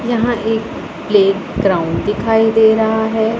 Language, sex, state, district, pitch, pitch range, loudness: Hindi, female, Punjab, Pathankot, 220 Hz, 205-225 Hz, -15 LUFS